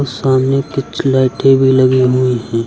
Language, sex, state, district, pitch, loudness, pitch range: Hindi, male, Uttar Pradesh, Lucknow, 130 Hz, -13 LUFS, 125-135 Hz